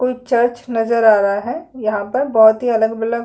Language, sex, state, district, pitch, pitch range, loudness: Hindi, female, Chhattisgarh, Sukma, 230 Hz, 220-245 Hz, -16 LUFS